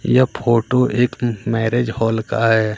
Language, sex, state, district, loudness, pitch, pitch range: Hindi, male, Bihar, Katihar, -18 LUFS, 115 Hz, 115-125 Hz